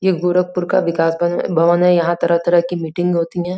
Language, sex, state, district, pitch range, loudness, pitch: Hindi, female, Uttar Pradesh, Gorakhpur, 170-180 Hz, -16 LUFS, 175 Hz